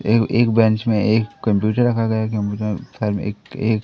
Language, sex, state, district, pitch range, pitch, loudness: Hindi, male, Madhya Pradesh, Katni, 105-115 Hz, 110 Hz, -19 LUFS